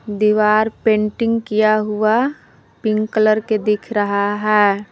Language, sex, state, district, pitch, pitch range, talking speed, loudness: Hindi, female, Jharkhand, Palamu, 215 Hz, 210-215 Hz, 120 wpm, -17 LUFS